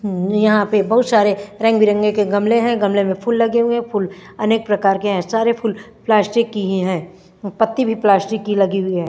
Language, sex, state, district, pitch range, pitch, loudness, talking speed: Hindi, female, Chandigarh, Chandigarh, 195-225 Hz, 210 Hz, -17 LUFS, 230 wpm